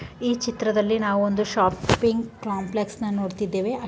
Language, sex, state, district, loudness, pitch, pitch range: Kannada, female, Karnataka, Mysore, -24 LUFS, 210 Hz, 200-230 Hz